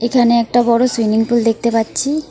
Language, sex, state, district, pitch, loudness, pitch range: Bengali, female, West Bengal, Alipurduar, 235 Hz, -15 LUFS, 225-245 Hz